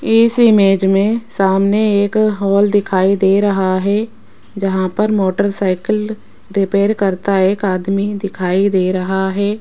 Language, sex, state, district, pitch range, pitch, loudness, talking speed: Hindi, female, Rajasthan, Jaipur, 190-205 Hz, 200 Hz, -15 LUFS, 130 wpm